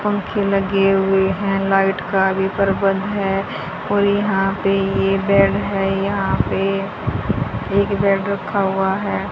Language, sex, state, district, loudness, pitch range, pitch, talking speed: Hindi, female, Haryana, Rohtak, -18 LUFS, 195-200 Hz, 195 Hz, 140 wpm